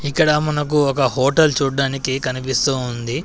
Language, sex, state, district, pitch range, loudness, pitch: Telugu, male, Telangana, Adilabad, 130-150 Hz, -18 LUFS, 135 Hz